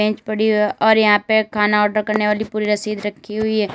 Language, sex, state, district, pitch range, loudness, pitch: Hindi, female, Uttar Pradesh, Lalitpur, 210-215 Hz, -17 LUFS, 210 Hz